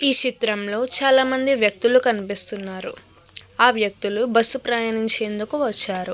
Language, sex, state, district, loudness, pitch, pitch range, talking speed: Telugu, female, Andhra Pradesh, Krishna, -16 LUFS, 230 Hz, 210-255 Hz, 110 wpm